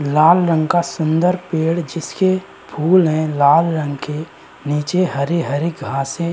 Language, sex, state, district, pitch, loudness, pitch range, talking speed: Hindi, male, Uttar Pradesh, Varanasi, 160 Hz, -17 LUFS, 145-170 Hz, 140 wpm